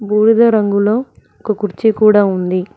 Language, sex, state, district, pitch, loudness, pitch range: Telugu, female, Telangana, Mahabubabad, 210 Hz, -13 LUFS, 200-220 Hz